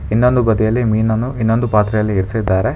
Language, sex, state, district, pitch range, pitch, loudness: Kannada, male, Karnataka, Bangalore, 105-115 Hz, 110 Hz, -15 LUFS